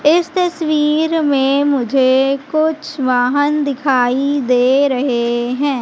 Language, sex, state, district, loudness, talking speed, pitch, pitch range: Hindi, female, Madhya Pradesh, Katni, -15 LUFS, 105 wpm, 275 Hz, 260-300 Hz